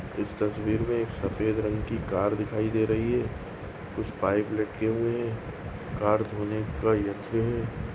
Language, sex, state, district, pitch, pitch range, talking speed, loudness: Hindi, female, Goa, North and South Goa, 110 Hz, 105-115 Hz, 150 wpm, -29 LUFS